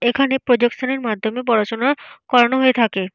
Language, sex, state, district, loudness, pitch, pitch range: Bengali, female, Jharkhand, Jamtara, -18 LUFS, 240 Hz, 225-260 Hz